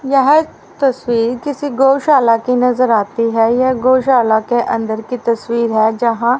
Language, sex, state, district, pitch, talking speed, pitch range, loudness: Hindi, female, Haryana, Rohtak, 245 Hz, 150 wpm, 230-265 Hz, -14 LUFS